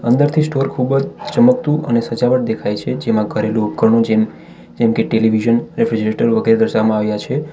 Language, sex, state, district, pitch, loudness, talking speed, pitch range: Gujarati, male, Gujarat, Valsad, 115 Hz, -16 LUFS, 160 wpm, 110-140 Hz